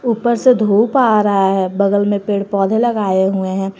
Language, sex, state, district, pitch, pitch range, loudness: Hindi, female, Jharkhand, Garhwa, 205 Hz, 195-225 Hz, -15 LUFS